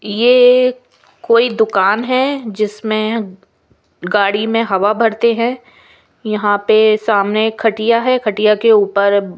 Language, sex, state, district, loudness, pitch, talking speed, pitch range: Hindi, female, Bihar, West Champaran, -14 LUFS, 220 Hz, 115 wpm, 210-235 Hz